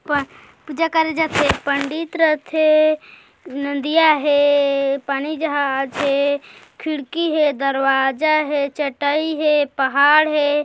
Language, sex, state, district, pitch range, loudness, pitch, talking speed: Hindi, female, Chhattisgarh, Korba, 280-310 Hz, -18 LUFS, 295 Hz, 100 wpm